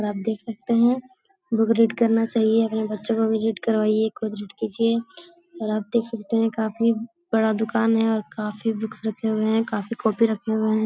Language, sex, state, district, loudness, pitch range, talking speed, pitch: Hindi, female, Bihar, Jahanabad, -23 LUFS, 220-230 Hz, 210 wpm, 225 Hz